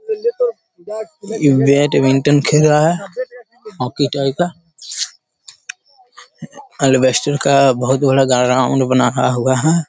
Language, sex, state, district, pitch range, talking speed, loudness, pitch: Hindi, male, Bihar, Jamui, 135-200 Hz, 95 wpm, -15 LUFS, 145 Hz